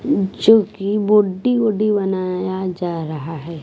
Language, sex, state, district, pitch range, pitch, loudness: Hindi, female, Bihar, West Champaran, 180-210 Hz, 190 Hz, -18 LUFS